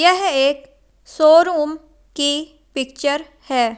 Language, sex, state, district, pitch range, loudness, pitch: Hindi, female, Madhya Pradesh, Umaria, 275-315 Hz, -17 LUFS, 295 Hz